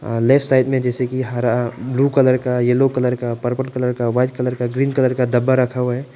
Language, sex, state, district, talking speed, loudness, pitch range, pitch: Hindi, male, Arunachal Pradesh, Papum Pare, 245 wpm, -18 LUFS, 125-130 Hz, 125 Hz